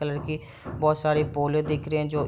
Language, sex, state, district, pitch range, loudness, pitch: Hindi, male, Bihar, East Champaran, 145-155 Hz, -26 LUFS, 150 Hz